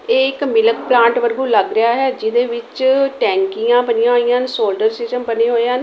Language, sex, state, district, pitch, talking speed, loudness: Punjabi, female, Punjab, Kapurthala, 260 Hz, 195 wpm, -15 LUFS